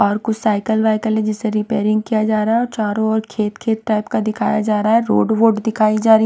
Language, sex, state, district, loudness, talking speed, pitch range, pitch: Hindi, female, Punjab, Pathankot, -17 LUFS, 270 wpm, 215-220 Hz, 220 Hz